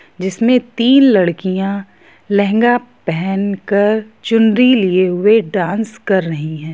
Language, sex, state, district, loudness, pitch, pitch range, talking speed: Hindi, female, Jharkhand, Sahebganj, -14 LUFS, 200 Hz, 185-225 Hz, 115 wpm